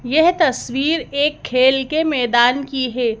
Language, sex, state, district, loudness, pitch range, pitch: Hindi, male, Madhya Pradesh, Bhopal, -17 LUFS, 250-305 Hz, 265 Hz